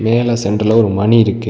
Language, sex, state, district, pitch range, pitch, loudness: Tamil, male, Tamil Nadu, Nilgiris, 105-115 Hz, 110 Hz, -13 LUFS